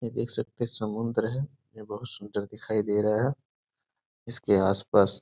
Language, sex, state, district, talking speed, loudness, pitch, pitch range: Hindi, male, Bihar, Sitamarhi, 185 wpm, -27 LUFS, 110 Hz, 105-120 Hz